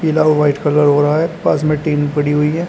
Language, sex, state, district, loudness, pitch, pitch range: Hindi, male, Uttar Pradesh, Shamli, -14 LUFS, 150 Hz, 145-155 Hz